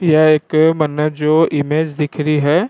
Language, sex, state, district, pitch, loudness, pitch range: Rajasthani, male, Rajasthan, Churu, 155 Hz, -15 LUFS, 150-160 Hz